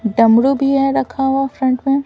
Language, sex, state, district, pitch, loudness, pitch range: Hindi, female, Bihar, Patna, 270 Hz, -15 LUFS, 255-275 Hz